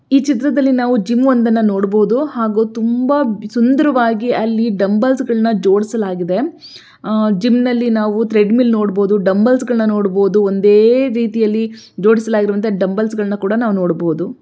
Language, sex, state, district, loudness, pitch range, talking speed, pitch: Kannada, female, Karnataka, Belgaum, -14 LUFS, 210-245 Hz, 105 wpm, 225 Hz